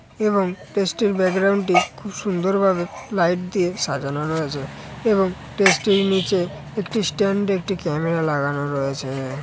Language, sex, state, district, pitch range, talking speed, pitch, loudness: Bengali, female, West Bengal, Malda, 155-200 Hz, 140 wpm, 185 Hz, -21 LUFS